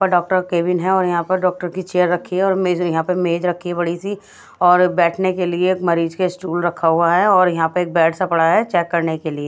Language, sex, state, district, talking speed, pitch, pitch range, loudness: Hindi, female, Bihar, Katihar, 270 wpm, 180 Hz, 170-185 Hz, -17 LUFS